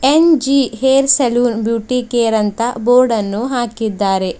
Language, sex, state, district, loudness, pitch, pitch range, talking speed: Kannada, female, Karnataka, Bidar, -14 LUFS, 240 Hz, 225-260 Hz, 120 wpm